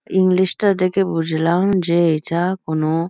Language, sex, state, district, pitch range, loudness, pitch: Bengali, female, West Bengal, Kolkata, 165-190 Hz, -17 LUFS, 175 Hz